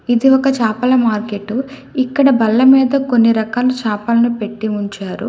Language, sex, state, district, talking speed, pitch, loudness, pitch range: Telugu, female, Telangana, Hyderabad, 135 wpm, 235 Hz, -15 LUFS, 220-260 Hz